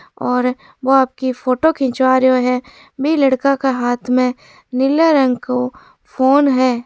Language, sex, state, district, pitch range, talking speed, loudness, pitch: Marwari, female, Rajasthan, Churu, 250-275 Hz, 150 wpm, -16 LUFS, 260 Hz